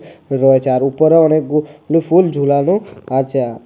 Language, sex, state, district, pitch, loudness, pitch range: Bengali, male, Tripura, West Tripura, 150 Hz, -14 LUFS, 135-160 Hz